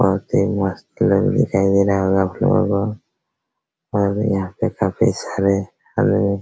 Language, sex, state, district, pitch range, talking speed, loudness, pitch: Hindi, male, Bihar, Araria, 95-105 Hz, 160 wpm, -19 LUFS, 100 Hz